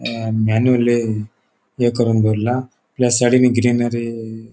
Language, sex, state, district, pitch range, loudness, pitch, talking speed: Konkani, male, Goa, North and South Goa, 110-125 Hz, -17 LUFS, 120 Hz, 120 wpm